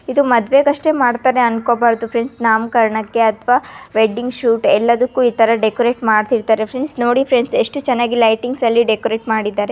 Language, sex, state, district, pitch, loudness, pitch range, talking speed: Kannada, female, Karnataka, Chamarajanagar, 235 Hz, -15 LUFS, 225-250 Hz, 135 wpm